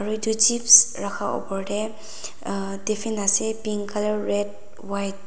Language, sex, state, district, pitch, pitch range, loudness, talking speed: Nagamese, female, Nagaland, Dimapur, 210 Hz, 195-220 Hz, -21 LUFS, 160 wpm